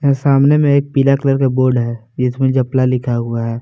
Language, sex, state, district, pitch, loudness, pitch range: Hindi, male, Jharkhand, Palamu, 130 Hz, -15 LUFS, 120-140 Hz